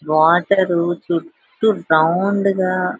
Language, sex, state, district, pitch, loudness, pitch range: Telugu, female, Telangana, Nalgonda, 185 Hz, -17 LUFS, 170-200 Hz